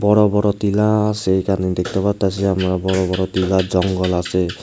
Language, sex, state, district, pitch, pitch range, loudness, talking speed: Bengali, male, Tripura, Unakoti, 95 Hz, 95-100 Hz, -18 LUFS, 170 wpm